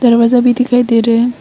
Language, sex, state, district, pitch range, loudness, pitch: Hindi, female, Arunachal Pradesh, Longding, 235-245 Hz, -11 LUFS, 245 Hz